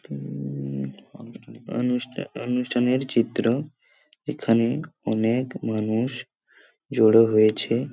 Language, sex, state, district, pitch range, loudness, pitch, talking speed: Bengali, male, West Bengal, Paschim Medinipur, 110-125 Hz, -24 LUFS, 115 Hz, 70 wpm